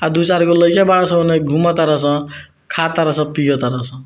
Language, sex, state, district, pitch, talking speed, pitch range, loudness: Bhojpuri, male, Bihar, Muzaffarpur, 160 Hz, 165 wpm, 145-170 Hz, -15 LUFS